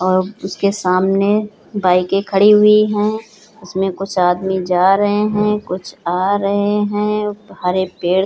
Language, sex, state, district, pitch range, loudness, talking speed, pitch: Hindi, female, Uttar Pradesh, Hamirpur, 185-210 Hz, -16 LUFS, 145 wpm, 195 Hz